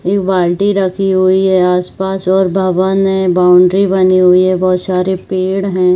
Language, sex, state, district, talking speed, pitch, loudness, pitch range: Hindi, female, Chhattisgarh, Bilaspur, 170 wpm, 185 Hz, -12 LUFS, 185-190 Hz